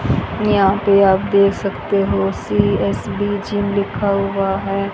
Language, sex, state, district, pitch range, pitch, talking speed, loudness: Hindi, female, Haryana, Jhajjar, 195-200 Hz, 200 Hz, 120 wpm, -17 LUFS